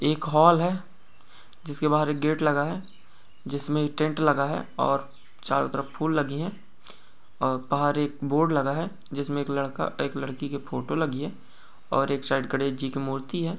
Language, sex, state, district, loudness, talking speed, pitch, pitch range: Hindi, male, Goa, North and South Goa, -26 LUFS, 180 wpm, 145 Hz, 140-155 Hz